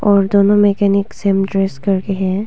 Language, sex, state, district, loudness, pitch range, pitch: Hindi, female, Arunachal Pradesh, Longding, -15 LUFS, 195-205 Hz, 200 Hz